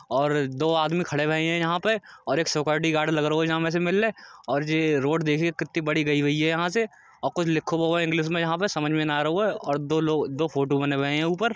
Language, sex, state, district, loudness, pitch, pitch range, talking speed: Hindi, male, Uttar Pradesh, Budaun, -24 LUFS, 160 Hz, 150-170 Hz, 250 wpm